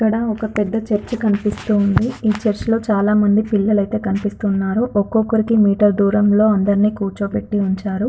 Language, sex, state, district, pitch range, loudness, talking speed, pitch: Telugu, female, Andhra Pradesh, Srikakulam, 205-220 Hz, -17 LUFS, 120 wpm, 210 Hz